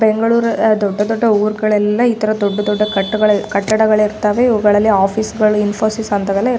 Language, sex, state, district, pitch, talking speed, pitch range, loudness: Kannada, female, Karnataka, Raichur, 215 Hz, 155 wpm, 205-220 Hz, -14 LUFS